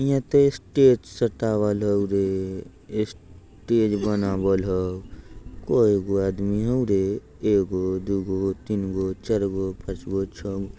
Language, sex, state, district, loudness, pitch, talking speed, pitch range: Bajjika, male, Bihar, Vaishali, -24 LUFS, 100 Hz, 110 wpm, 95-105 Hz